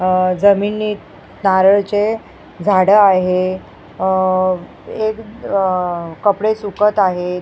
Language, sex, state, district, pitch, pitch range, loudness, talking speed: Marathi, female, Maharashtra, Mumbai Suburban, 195 Hz, 185-205 Hz, -15 LUFS, 90 wpm